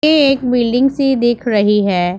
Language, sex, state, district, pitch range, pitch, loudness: Hindi, female, Punjab, Pathankot, 210-270 Hz, 245 Hz, -14 LUFS